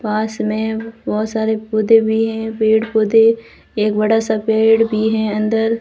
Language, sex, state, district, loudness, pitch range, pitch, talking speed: Hindi, female, Rajasthan, Barmer, -16 LUFS, 215-225 Hz, 220 Hz, 165 wpm